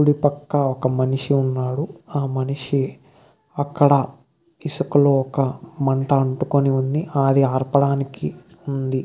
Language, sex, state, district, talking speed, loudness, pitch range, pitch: Telugu, male, Karnataka, Bellary, 105 wpm, -21 LUFS, 135-145 Hz, 140 Hz